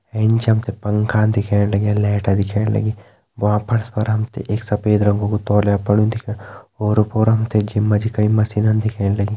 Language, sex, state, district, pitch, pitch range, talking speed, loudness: Hindi, male, Uttarakhand, Tehri Garhwal, 105 Hz, 105-110 Hz, 205 wpm, -18 LUFS